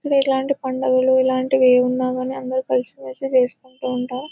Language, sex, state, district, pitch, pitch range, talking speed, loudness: Telugu, male, Telangana, Nalgonda, 255 Hz, 250-265 Hz, 140 wpm, -19 LUFS